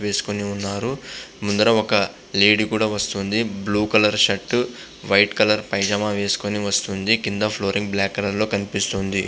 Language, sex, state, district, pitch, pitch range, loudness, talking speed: Telugu, male, Andhra Pradesh, Visakhapatnam, 105 Hz, 100-105 Hz, -20 LUFS, 115 wpm